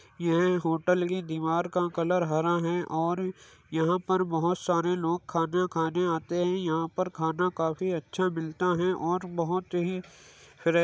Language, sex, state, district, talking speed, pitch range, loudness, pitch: Hindi, male, Uttar Pradesh, Muzaffarnagar, 165 wpm, 165-180 Hz, -28 LUFS, 175 Hz